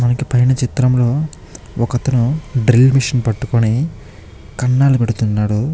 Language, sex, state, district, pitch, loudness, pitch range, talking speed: Telugu, male, Andhra Pradesh, Chittoor, 125 Hz, -15 LUFS, 120-130 Hz, 105 wpm